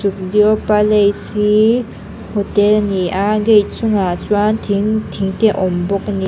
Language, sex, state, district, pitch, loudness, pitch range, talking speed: Mizo, female, Mizoram, Aizawl, 205 Hz, -15 LUFS, 195-215 Hz, 170 wpm